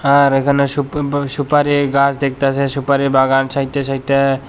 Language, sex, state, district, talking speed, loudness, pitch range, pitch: Bengali, male, Tripura, Unakoti, 175 wpm, -15 LUFS, 135-140 Hz, 140 Hz